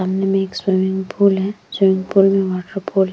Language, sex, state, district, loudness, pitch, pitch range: Hindi, female, Uttar Pradesh, Jyotiba Phule Nagar, -17 LUFS, 195 Hz, 190-195 Hz